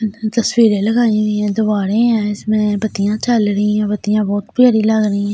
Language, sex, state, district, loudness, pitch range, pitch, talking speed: Hindi, female, Delhi, New Delhi, -15 LUFS, 210-220 Hz, 215 Hz, 190 wpm